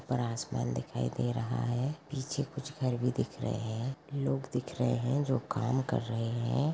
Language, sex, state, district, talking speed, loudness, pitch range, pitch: Hindi, female, Chhattisgarh, Rajnandgaon, 195 wpm, -34 LUFS, 115-135 Hz, 125 Hz